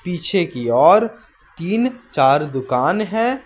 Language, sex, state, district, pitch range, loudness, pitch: Hindi, male, West Bengal, Alipurduar, 135-220 Hz, -17 LUFS, 180 Hz